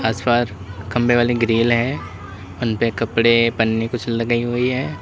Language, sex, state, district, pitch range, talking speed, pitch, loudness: Hindi, male, Uttar Pradesh, Lalitpur, 110-120 Hz, 155 wpm, 115 Hz, -19 LUFS